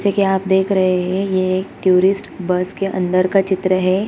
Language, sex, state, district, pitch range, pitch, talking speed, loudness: Hindi, female, Bihar, Gopalganj, 185-195 Hz, 185 Hz, 205 wpm, -17 LUFS